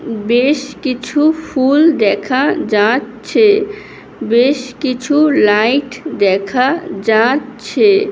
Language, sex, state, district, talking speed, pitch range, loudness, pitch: Bengali, female, West Bengal, Malda, 75 wpm, 230-305 Hz, -13 LUFS, 260 Hz